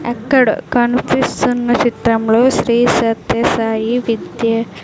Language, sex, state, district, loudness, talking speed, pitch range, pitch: Telugu, female, Andhra Pradesh, Sri Satya Sai, -15 LUFS, 100 wpm, 225-245 Hz, 235 Hz